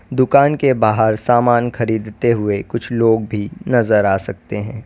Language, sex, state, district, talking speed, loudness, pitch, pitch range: Hindi, female, Uttar Pradesh, Lalitpur, 160 wpm, -16 LUFS, 115 Hz, 105-120 Hz